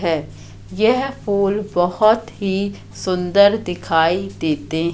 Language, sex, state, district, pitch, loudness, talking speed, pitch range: Hindi, female, Madhya Pradesh, Katni, 185 Hz, -18 LUFS, 95 wpm, 165-205 Hz